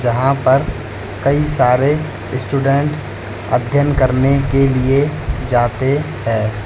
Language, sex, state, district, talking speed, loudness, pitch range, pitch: Hindi, male, Uttar Pradesh, Lalitpur, 100 wpm, -16 LUFS, 120-140 Hz, 130 Hz